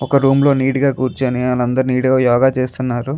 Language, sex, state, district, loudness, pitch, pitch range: Telugu, male, Andhra Pradesh, Guntur, -15 LUFS, 130 Hz, 125-135 Hz